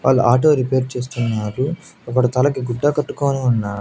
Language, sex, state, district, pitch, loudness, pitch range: Telugu, male, Andhra Pradesh, Annamaya, 130 Hz, -18 LUFS, 120-140 Hz